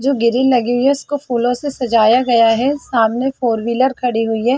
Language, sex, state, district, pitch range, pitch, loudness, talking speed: Hindi, female, Chhattisgarh, Bilaspur, 235-265 Hz, 245 Hz, -15 LUFS, 235 wpm